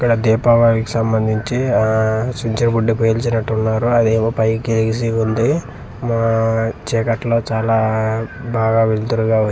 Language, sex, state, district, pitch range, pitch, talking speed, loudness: Telugu, male, Andhra Pradesh, Manyam, 110-115 Hz, 115 Hz, 120 wpm, -17 LUFS